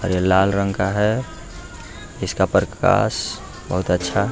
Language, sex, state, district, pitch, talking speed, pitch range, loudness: Hindi, male, Bihar, Gaya, 100 Hz, 155 wpm, 90-105 Hz, -20 LUFS